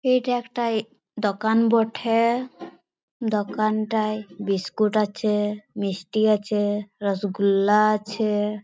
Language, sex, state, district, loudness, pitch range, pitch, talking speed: Bengali, female, West Bengal, Paschim Medinipur, -23 LUFS, 205-230 Hz, 215 Hz, 75 wpm